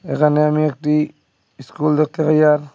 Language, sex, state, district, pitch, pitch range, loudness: Bengali, male, Assam, Hailakandi, 150 Hz, 145-155 Hz, -17 LUFS